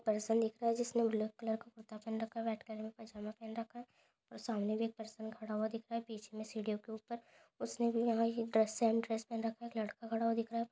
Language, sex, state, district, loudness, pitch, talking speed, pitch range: Hindi, female, Bihar, Jamui, -39 LUFS, 225 Hz, 280 wpm, 220-230 Hz